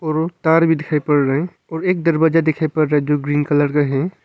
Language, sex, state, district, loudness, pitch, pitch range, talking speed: Hindi, male, Arunachal Pradesh, Longding, -17 LUFS, 155 Hz, 145-165 Hz, 280 wpm